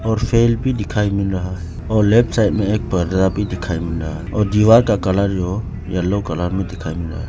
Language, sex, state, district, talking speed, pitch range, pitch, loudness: Hindi, male, Arunachal Pradesh, Lower Dibang Valley, 230 wpm, 90-105 Hz, 100 Hz, -18 LUFS